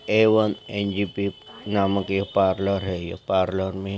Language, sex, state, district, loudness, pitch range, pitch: Hindi, male, Andhra Pradesh, Chittoor, -23 LUFS, 95-100 Hz, 100 Hz